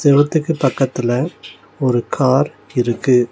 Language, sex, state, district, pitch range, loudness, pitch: Tamil, male, Tamil Nadu, Nilgiris, 125-145 Hz, -17 LUFS, 130 Hz